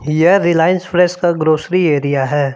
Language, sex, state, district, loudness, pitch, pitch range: Hindi, male, Jharkhand, Palamu, -14 LUFS, 165 Hz, 145-175 Hz